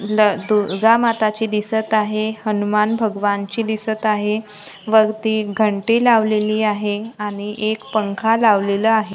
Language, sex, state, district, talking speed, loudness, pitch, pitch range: Marathi, female, Maharashtra, Gondia, 125 wpm, -18 LUFS, 215 Hz, 210-220 Hz